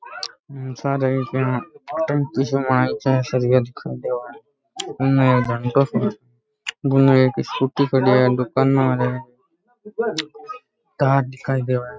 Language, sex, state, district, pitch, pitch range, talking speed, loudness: Rajasthani, male, Rajasthan, Nagaur, 135 Hz, 130-145 Hz, 75 wpm, -20 LUFS